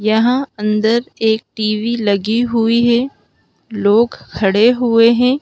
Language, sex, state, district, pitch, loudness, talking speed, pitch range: Hindi, male, Madhya Pradesh, Bhopal, 230 Hz, -15 LUFS, 120 wpm, 215-240 Hz